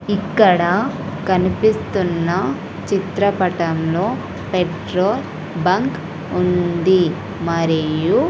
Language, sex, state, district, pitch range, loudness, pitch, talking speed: Telugu, female, Andhra Pradesh, Sri Satya Sai, 170-195 Hz, -18 LUFS, 180 Hz, 50 wpm